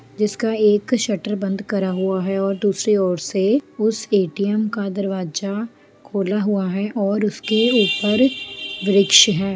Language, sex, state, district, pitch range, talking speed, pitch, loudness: Hindi, female, Jharkhand, Sahebganj, 195-215 Hz, 145 wpm, 205 Hz, -19 LUFS